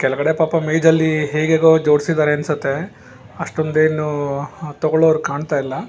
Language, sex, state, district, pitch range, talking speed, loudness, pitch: Kannada, male, Karnataka, Bangalore, 145-160 Hz, 110 wpm, -17 LUFS, 155 Hz